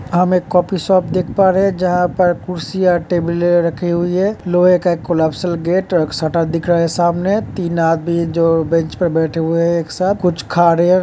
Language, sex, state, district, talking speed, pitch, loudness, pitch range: Hindi, male, Uttar Pradesh, Jalaun, 210 wpm, 175 Hz, -15 LUFS, 165-180 Hz